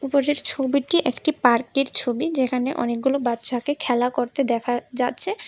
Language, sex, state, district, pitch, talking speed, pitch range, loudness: Bengali, female, Tripura, West Tripura, 260 Hz, 130 wpm, 245-280 Hz, -22 LUFS